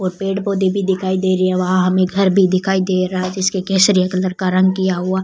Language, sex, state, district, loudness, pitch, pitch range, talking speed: Rajasthani, female, Rajasthan, Churu, -16 LUFS, 185 Hz, 185-190 Hz, 275 wpm